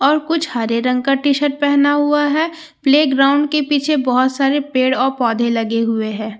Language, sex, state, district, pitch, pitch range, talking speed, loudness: Hindi, female, Bihar, Katihar, 275 Hz, 250-295 Hz, 190 wpm, -16 LUFS